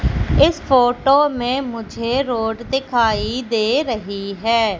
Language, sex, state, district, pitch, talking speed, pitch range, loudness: Hindi, female, Madhya Pradesh, Katni, 235 Hz, 110 wpm, 225-265 Hz, -18 LUFS